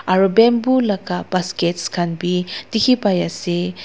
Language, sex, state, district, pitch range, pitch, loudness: Nagamese, female, Nagaland, Dimapur, 175-215 Hz, 185 Hz, -18 LUFS